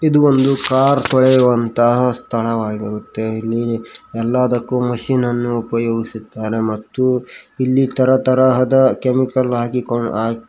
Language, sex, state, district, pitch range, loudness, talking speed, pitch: Kannada, male, Karnataka, Koppal, 115-130 Hz, -16 LUFS, 80 wpm, 120 Hz